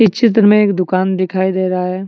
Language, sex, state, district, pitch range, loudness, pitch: Hindi, male, Jharkhand, Deoghar, 185-210 Hz, -13 LUFS, 190 Hz